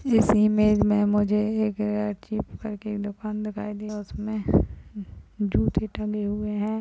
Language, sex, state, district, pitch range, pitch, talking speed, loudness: Hindi, female, Uttar Pradesh, Jyotiba Phule Nagar, 210-215 Hz, 210 Hz, 130 wpm, -25 LUFS